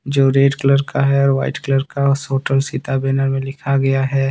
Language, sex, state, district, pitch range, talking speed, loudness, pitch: Hindi, male, Jharkhand, Deoghar, 135-140 Hz, 220 wpm, -17 LUFS, 135 Hz